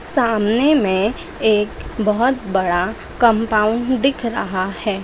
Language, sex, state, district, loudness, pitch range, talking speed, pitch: Hindi, male, Maharashtra, Mumbai Suburban, -18 LUFS, 200-245 Hz, 105 wpm, 215 Hz